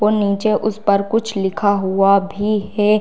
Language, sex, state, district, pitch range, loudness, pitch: Hindi, female, Bihar, Darbhanga, 200-215 Hz, -17 LUFS, 205 Hz